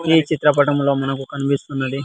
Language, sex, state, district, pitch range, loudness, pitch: Telugu, male, Andhra Pradesh, Sri Satya Sai, 135-150 Hz, -18 LUFS, 140 Hz